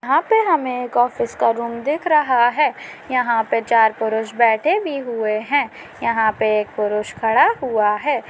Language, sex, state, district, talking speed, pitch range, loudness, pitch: Hindi, female, Maharashtra, Chandrapur, 180 wpm, 220-285 Hz, -18 LUFS, 235 Hz